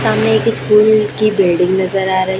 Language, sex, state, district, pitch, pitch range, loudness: Hindi, female, Chhattisgarh, Raipur, 195 Hz, 190-215 Hz, -13 LUFS